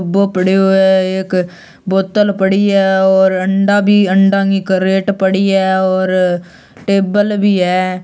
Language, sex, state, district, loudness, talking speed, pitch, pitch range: Hindi, male, Rajasthan, Churu, -12 LUFS, 140 wpm, 190 Hz, 185-195 Hz